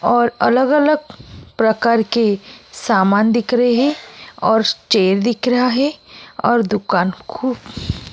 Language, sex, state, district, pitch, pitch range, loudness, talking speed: Hindi, female, Uttar Pradesh, Jyotiba Phule Nagar, 235 Hz, 215-250 Hz, -16 LUFS, 125 wpm